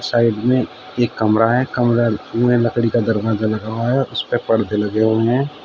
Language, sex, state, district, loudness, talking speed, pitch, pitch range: Hindi, male, Uttar Pradesh, Shamli, -18 LUFS, 190 wpm, 115 Hz, 110-125 Hz